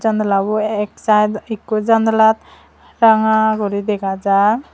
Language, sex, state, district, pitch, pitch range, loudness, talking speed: Chakma, female, Tripura, Dhalai, 215 Hz, 205-220 Hz, -16 LUFS, 115 wpm